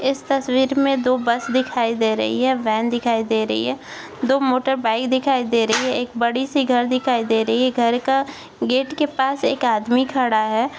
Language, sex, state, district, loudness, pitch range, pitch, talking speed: Hindi, female, Chhattisgarh, Jashpur, -19 LUFS, 230-265 Hz, 250 Hz, 205 wpm